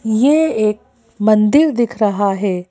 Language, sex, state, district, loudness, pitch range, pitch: Hindi, female, Madhya Pradesh, Bhopal, -15 LUFS, 205-240 Hz, 215 Hz